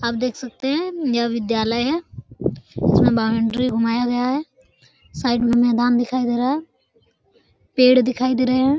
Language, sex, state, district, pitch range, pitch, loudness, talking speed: Hindi, female, Jharkhand, Sahebganj, 235-260 Hz, 250 Hz, -20 LUFS, 165 wpm